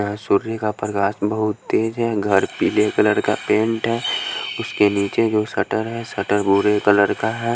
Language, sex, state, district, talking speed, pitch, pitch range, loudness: Hindi, male, Haryana, Jhajjar, 180 wpm, 105 Hz, 100-115 Hz, -20 LUFS